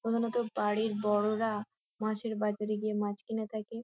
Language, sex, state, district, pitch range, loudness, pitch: Bengali, female, West Bengal, Kolkata, 210-225 Hz, -33 LUFS, 215 Hz